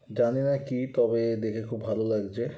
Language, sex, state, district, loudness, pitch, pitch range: Bengali, male, West Bengal, Kolkata, -28 LUFS, 115 Hz, 110-125 Hz